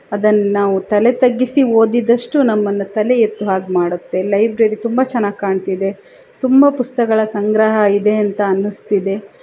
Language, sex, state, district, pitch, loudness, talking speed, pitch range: Kannada, female, Karnataka, Chamarajanagar, 215 Hz, -15 LUFS, 135 wpm, 200-240 Hz